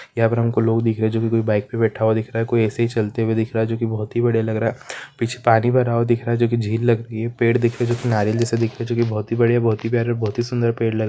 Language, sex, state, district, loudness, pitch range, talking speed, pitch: Hindi, male, Jharkhand, Sahebganj, -20 LUFS, 110-120 Hz, 350 wpm, 115 Hz